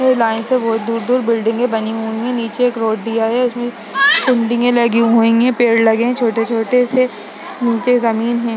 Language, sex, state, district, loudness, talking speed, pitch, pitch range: Hindi, female, Uttar Pradesh, Etah, -15 LUFS, 205 wpm, 230 Hz, 225-245 Hz